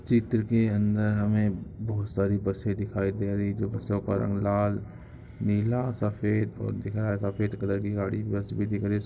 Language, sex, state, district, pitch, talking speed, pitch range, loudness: Hindi, male, Bihar, Samastipur, 105 Hz, 210 wpm, 100-110 Hz, -28 LUFS